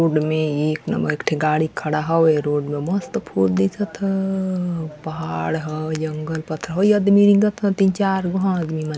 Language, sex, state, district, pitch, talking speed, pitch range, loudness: Chhattisgarhi, female, Chhattisgarh, Balrampur, 160 Hz, 155 wpm, 155-195 Hz, -20 LUFS